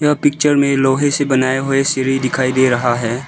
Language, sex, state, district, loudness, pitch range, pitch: Hindi, male, Arunachal Pradesh, Lower Dibang Valley, -15 LUFS, 130-140 Hz, 135 Hz